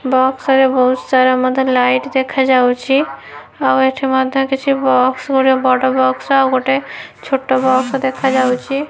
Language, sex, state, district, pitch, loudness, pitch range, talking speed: Odia, female, Odisha, Nuapada, 260 Hz, -14 LUFS, 255-270 Hz, 140 wpm